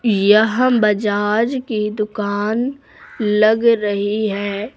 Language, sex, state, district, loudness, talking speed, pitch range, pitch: Hindi, female, Uttar Pradesh, Lucknow, -17 LUFS, 90 wpm, 205-230 Hz, 215 Hz